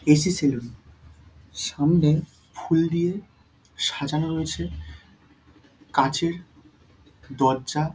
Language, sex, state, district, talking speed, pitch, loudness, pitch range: Bengali, female, West Bengal, Dakshin Dinajpur, 75 wpm, 140 Hz, -24 LUFS, 95-160 Hz